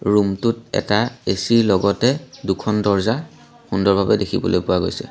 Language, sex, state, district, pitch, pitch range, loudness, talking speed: Assamese, male, Assam, Sonitpur, 105 Hz, 100-115 Hz, -19 LUFS, 150 wpm